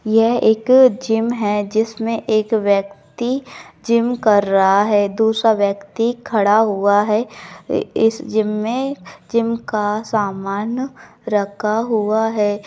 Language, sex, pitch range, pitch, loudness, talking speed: Maithili, female, 205-230 Hz, 220 Hz, -17 LUFS, 125 wpm